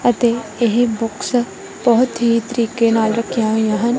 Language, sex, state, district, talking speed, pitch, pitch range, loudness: Punjabi, female, Punjab, Kapurthala, 150 wpm, 235 Hz, 225-240 Hz, -17 LUFS